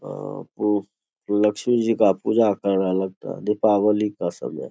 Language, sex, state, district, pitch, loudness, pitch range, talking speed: Hindi, male, Bihar, Saharsa, 105 Hz, -22 LUFS, 100-105 Hz, 190 wpm